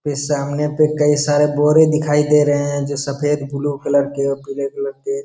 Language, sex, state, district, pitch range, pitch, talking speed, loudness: Hindi, male, Bihar, Jamui, 140-150 Hz, 145 Hz, 230 wpm, -17 LUFS